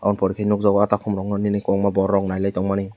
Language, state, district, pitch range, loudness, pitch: Kokborok, Tripura, West Tripura, 95-105 Hz, -21 LUFS, 100 Hz